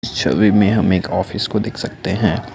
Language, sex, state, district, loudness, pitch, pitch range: Hindi, male, Assam, Kamrup Metropolitan, -17 LUFS, 105 Hz, 95-110 Hz